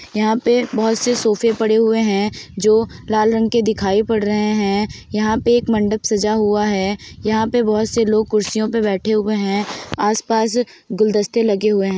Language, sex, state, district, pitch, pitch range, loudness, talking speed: Hindi, female, Uttar Pradesh, Hamirpur, 215 Hz, 210-225 Hz, -17 LUFS, 200 wpm